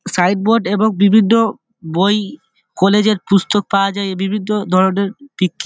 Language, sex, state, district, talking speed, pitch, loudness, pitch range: Bengali, male, West Bengal, Dakshin Dinajpur, 150 wpm, 200 Hz, -15 LUFS, 190-215 Hz